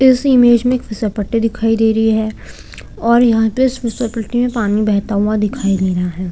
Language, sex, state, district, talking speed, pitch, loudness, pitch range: Hindi, female, Chhattisgarh, Korba, 210 wpm, 225 Hz, -15 LUFS, 210-240 Hz